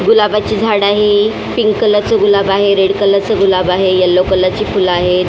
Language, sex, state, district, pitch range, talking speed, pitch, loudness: Marathi, female, Maharashtra, Mumbai Suburban, 185-210 Hz, 205 wpm, 200 Hz, -12 LUFS